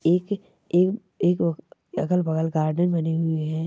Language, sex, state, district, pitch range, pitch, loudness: Hindi, male, Chhattisgarh, Bastar, 160-180 Hz, 170 Hz, -24 LUFS